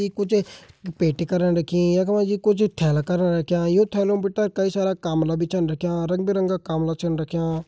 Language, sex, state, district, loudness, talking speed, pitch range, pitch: Hindi, male, Uttarakhand, Tehri Garhwal, -22 LUFS, 195 wpm, 165-200 Hz, 180 Hz